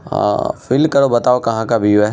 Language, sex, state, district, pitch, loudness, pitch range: Hindi, male, Bihar, Araria, 120 Hz, -15 LUFS, 110-130 Hz